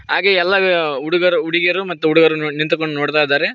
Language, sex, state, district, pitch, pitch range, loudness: Kannada, male, Karnataka, Koppal, 165 Hz, 155-175 Hz, -15 LUFS